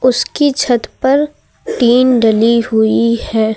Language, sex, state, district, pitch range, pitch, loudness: Hindi, female, Uttar Pradesh, Lucknow, 225-255 Hz, 240 Hz, -12 LUFS